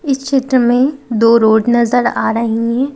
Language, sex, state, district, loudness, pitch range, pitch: Hindi, female, Madhya Pradesh, Bhopal, -13 LUFS, 230-265 Hz, 240 Hz